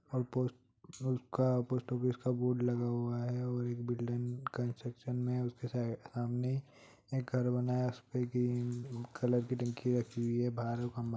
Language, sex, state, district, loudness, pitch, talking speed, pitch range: Hindi, male, Jharkhand, Jamtara, -36 LUFS, 125 Hz, 170 wpm, 120-125 Hz